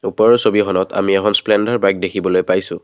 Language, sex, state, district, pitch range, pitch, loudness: Assamese, male, Assam, Kamrup Metropolitan, 95-105 Hz, 100 Hz, -15 LUFS